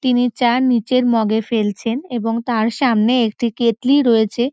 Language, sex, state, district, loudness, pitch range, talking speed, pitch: Bengali, female, West Bengal, North 24 Parganas, -17 LUFS, 225-250 Hz, 160 wpm, 235 Hz